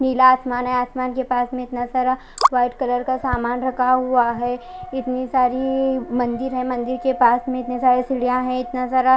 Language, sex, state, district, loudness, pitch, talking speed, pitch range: Hindi, female, Odisha, Khordha, -20 LUFS, 255 Hz, 195 wpm, 245-260 Hz